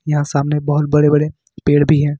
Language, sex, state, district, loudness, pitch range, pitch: Hindi, male, Jharkhand, Ranchi, -15 LUFS, 145-150 Hz, 150 Hz